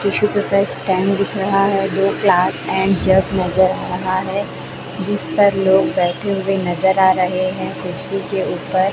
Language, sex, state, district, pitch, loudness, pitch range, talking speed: Hindi, female, Chhattisgarh, Raipur, 190 Hz, -17 LUFS, 185-200 Hz, 170 wpm